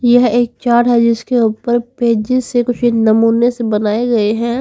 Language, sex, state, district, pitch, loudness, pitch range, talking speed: Hindi, female, Haryana, Charkhi Dadri, 235 Hz, -14 LUFS, 230-245 Hz, 180 wpm